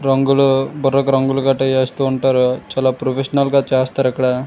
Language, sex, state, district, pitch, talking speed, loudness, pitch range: Telugu, male, Andhra Pradesh, Srikakulam, 135 Hz, 135 wpm, -16 LUFS, 130-135 Hz